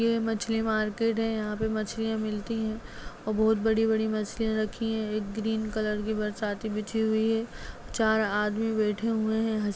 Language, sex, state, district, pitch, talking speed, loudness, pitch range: Hindi, female, Chhattisgarh, Raigarh, 220 Hz, 180 wpm, -28 LUFS, 215-225 Hz